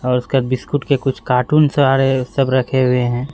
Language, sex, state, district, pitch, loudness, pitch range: Hindi, male, Bihar, Katihar, 130 Hz, -16 LUFS, 125-135 Hz